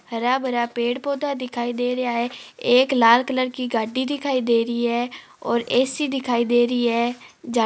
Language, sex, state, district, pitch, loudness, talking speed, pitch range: Marwari, female, Rajasthan, Nagaur, 245 Hz, -21 LUFS, 205 wpm, 235-255 Hz